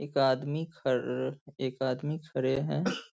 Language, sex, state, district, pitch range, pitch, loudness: Hindi, male, Bihar, Saharsa, 130-145 Hz, 135 Hz, -31 LUFS